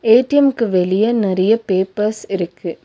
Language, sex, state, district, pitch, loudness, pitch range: Tamil, female, Tamil Nadu, Nilgiris, 210 Hz, -16 LUFS, 190-230 Hz